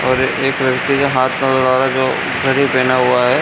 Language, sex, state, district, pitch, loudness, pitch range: Hindi, male, Bihar, Jamui, 130 Hz, -14 LUFS, 130-135 Hz